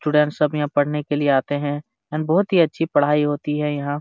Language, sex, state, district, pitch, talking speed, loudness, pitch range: Hindi, male, Jharkhand, Jamtara, 150 Hz, 225 wpm, -20 LUFS, 145-150 Hz